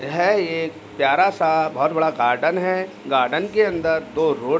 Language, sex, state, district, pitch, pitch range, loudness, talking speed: Hindi, male, Uttar Pradesh, Hamirpur, 165 Hz, 160-200 Hz, -20 LUFS, 180 wpm